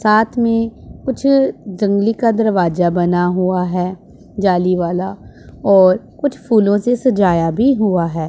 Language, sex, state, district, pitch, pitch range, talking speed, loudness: Hindi, male, Punjab, Pathankot, 200 Hz, 180-230 Hz, 135 wpm, -15 LUFS